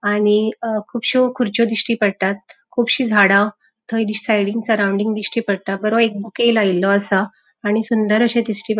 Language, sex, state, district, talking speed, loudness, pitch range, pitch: Konkani, female, Goa, North and South Goa, 155 wpm, -17 LUFS, 205-230 Hz, 220 Hz